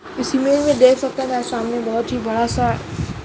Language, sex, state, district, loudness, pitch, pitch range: Hindi, female, Uttar Pradesh, Jalaun, -18 LUFS, 255 Hz, 235-270 Hz